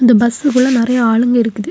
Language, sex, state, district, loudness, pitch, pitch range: Tamil, female, Tamil Nadu, Kanyakumari, -13 LUFS, 240 Hz, 230-250 Hz